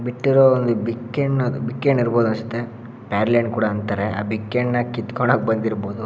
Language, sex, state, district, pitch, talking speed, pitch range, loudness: Kannada, male, Karnataka, Shimoga, 120 Hz, 170 wpm, 110-125 Hz, -20 LUFS